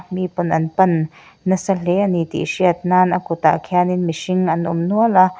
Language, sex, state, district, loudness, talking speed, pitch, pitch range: Mizo, female, Mizoram, Aizawl, -18 LUFS, 235 wpm, 180 Hz, 165-185 Hz